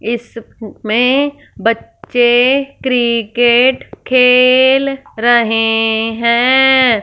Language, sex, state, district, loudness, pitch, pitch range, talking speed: Hindi, female, Punjab, Fazilka, -12 LUFS, 240 Hz, 230-260 Hz, 50 wpm